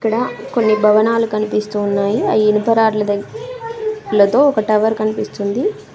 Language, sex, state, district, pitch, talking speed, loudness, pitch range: Telugu, female, Telangana, Mahabubabad, 215 Hz, 130 wpm, -16 LUFS, 210-235 Hz